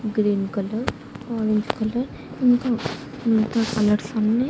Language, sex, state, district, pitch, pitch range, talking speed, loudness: Telugu, female, Andhra Pradesh, Annamaya, 220 Hz, 215-235 Hz, 105 wpm, -23 LUFS